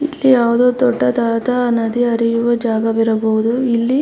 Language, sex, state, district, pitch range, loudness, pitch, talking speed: Kannada, female, Karnataka, Mysore, 225-250 Hz, -15 LUFS, 235 Hz, 120 wpm